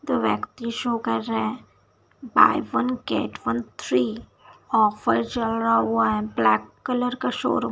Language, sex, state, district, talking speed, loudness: Hindi, female, Bihar, Saharsa, 165 wpm, -23 LUFS